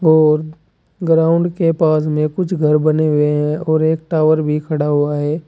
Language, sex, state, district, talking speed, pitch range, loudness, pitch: Hindi, male, Uttar Pradesh, Saharanpur, 185 wpm, 150-160 Hz, -15 LUFS, 155 Hz